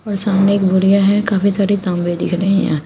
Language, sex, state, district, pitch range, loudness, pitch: Hindi, female, Uttar Pradesh, Shamli, 190-200 Hz, -15 LUFS, 195 Hz